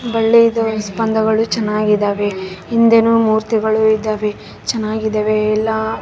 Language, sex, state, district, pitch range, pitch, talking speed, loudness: Kannada, female, Karnataka, Raichur, 215-225 Hz, 220 Hz, 90 wpm, -15 LUFS